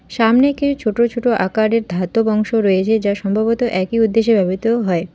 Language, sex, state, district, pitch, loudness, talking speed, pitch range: Bengali, female, West Bengal, Alipurduar, 220 Hz, -16 LUFS, 165 wpm, 195-230 Hz